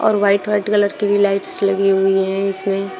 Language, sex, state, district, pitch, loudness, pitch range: Hindi, female, Uttar Pradesh, Shamli, 200 Hz, -16 LUFS, 195-205 Hz